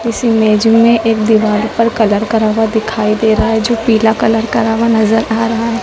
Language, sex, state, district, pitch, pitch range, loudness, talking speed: Hindi, female, Madhya Pradesh, Dhar, 225 Hz, 220-230 Hz, -12 LUFS, 225 wpm